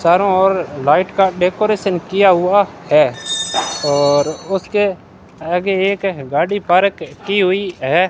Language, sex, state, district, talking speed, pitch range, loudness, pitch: Hindi, male, Rajasthan, Bikaner, 125 wpm, 165-195 Hz, -15 LUFS, 185 Hz